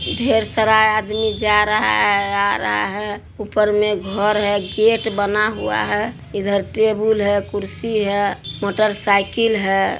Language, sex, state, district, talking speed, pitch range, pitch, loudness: Hindi, female, Bihar, Supaul, 145 wpm, 200-215 Hz, 210 Hz, -18 LUFS